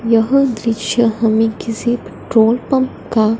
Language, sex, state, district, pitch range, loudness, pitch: Hindi, female, Punjab, Fazilka, 225-240 Hz, -16 LUFS, 230 Hz